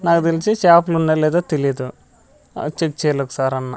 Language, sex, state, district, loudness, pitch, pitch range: Telugu, male, Andhra Pradesh, Sri Satya Sai, -18 LUFS, 155 Hz, 140-170 Hz